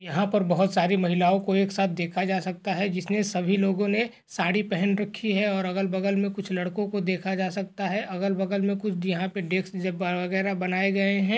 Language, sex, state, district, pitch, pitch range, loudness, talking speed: Hindi, male, Uttar Pradesh, Jalaun, 195 Hz, 185-200 Hz, -26 LUFS, 210 wpm